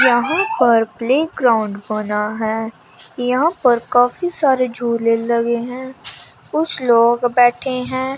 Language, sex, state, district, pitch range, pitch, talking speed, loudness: Hindi, female, Chandigarh, Chandigarh, 230-260 Hz, 245 Hz, 115 wpm, -17 LUFS